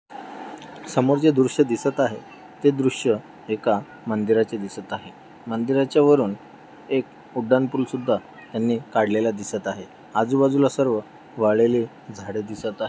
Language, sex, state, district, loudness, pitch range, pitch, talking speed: Marathi, male, Maharashtra, Dhule, -22 LUFS, 110-135 Hz, 115 Hz, 125 wpm